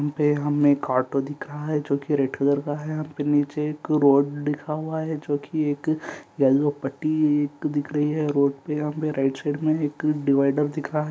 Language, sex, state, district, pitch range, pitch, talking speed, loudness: Hindi, male, Chhattisgarh, Rajnandgaon, 140-150 Hz, 145 Hz, 230 wpm, -24 LUFS